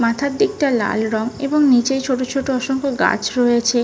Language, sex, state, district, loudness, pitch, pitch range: Bengali, female, West Bengal, Malda, -18 LUFS, 260 Hz, 240-275 Hz